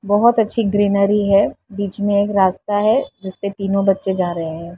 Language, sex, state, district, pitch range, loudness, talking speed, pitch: Hindi, female, Maharashtra, Mumbai Suburban, 190-205 Hz, -17 LUFS, 200 wpm, 200 Hz